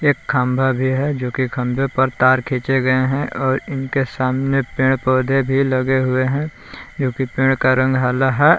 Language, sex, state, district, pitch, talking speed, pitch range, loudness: Hindi, male, Jharkhand, Palamu, 130 Hz, 190 wpm, 130-135 Hz, -18 LUFS